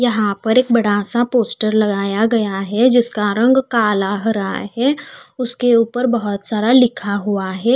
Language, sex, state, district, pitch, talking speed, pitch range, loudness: Hindi, female, Haryana, Charkhi Dadri, 225 Hz, 155 wpm, 205-245 Hz, -16 LUFS